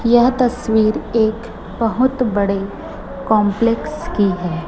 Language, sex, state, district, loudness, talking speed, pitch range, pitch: Hindi, female, Chhattisgarh, Raipur, -17 LUFS, 100 wpm, 200-235 Hz, 220 Hz